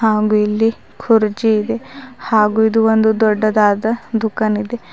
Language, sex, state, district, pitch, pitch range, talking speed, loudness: Kannada, female, Karnataka, Bidar, 220 Hz, 215-225 Hz, 110 wpm, -15 LUFS